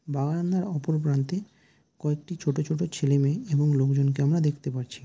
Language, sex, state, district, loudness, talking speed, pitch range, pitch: Bengali, male, West Bengal, Jalpaiguri, -26 LUFS, 165 wpm, 140-165 Hz, 150 Hz